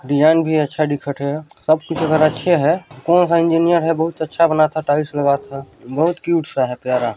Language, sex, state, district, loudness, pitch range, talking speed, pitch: Chhattisgarhi, male, Chhattisgarh, Balrampur, -17 LUFS, 140-165 Hz, 210 wpm, 155 Hz